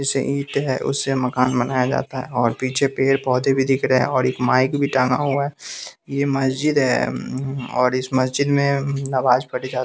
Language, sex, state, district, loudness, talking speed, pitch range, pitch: Hindi, male, Bihar, West Champaran, -20 LUFS, 205 wpm, 130-140 Hz, 135 Hz